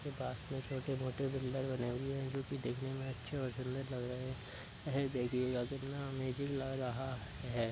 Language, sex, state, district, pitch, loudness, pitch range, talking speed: Hindi, male, Uttar Pradesh, Deoria, 130 Hz, -40 LUFS, 125-135 Hz, 200 wpm